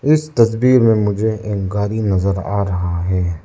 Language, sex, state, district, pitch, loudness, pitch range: Hindi, male, Arunachal Pradesh, Lower Dibang Valley, 105 Hz, -17 LUFS, 95-115 Hz